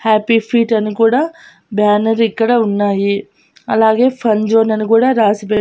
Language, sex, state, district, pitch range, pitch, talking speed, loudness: Telugu, female, Andhra Pradesh, Annamaya, 210-230 Hz, 220 Hz, 140 wpm, -14 LUFS